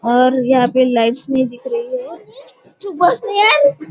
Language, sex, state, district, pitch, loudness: Hindi, male, Maharashtra, Nagpur, 285 Hz, -15 LUFS